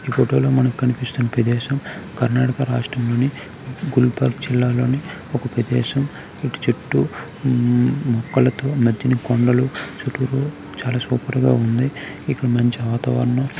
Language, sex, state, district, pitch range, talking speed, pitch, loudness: Telugu, male, Karnataka, Gulbarga, 120-135 Hz, 110 wpm, 125 Hz, -20 LUFS